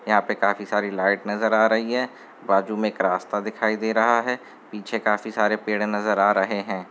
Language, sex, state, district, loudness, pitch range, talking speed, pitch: Hindi, male, Bihar, Gopalganj, -23 LUFS, 100-110 Hz, 215 wpm, 105 Hz